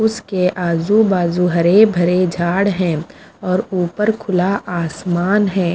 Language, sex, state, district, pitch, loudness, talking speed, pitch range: Hindi, female, Punjab, Fazilka, 185 Hz, -16 LUFS, 125 wpm, 175-200 Hz